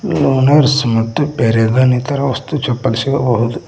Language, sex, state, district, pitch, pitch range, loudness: Kannada, male, Karnataka, Koppal, 130 Hz, 115-140 Hz, -14 LUFS